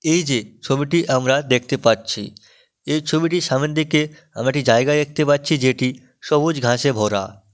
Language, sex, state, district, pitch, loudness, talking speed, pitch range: Bengali, male, West Bengal, Malda, 135 Hz, -19 LUFS, 150 wpm, 125-155 Hz